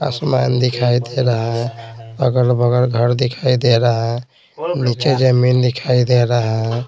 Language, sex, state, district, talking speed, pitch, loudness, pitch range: Hindi, male, Bihar, Patna, 150 wpm, 125 Hz, -16 LUFS, 120-125 Hz